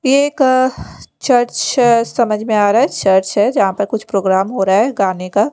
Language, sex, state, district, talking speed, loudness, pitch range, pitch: Hindi, female, Bihar, Patna, 205 wpm, -14 LUFS, 195-245 Hz, 215 Hz